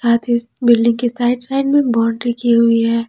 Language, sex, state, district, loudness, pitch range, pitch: Hindi, female, Jharkhand, Ranchi, -15 LUFS, 235-245 Hz, 235 Hz